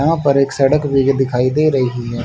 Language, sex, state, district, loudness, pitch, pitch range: Hindi, male, Haryana, Charkhi Dadri, -15 LUFS, 135 Hz, 130-145 Hz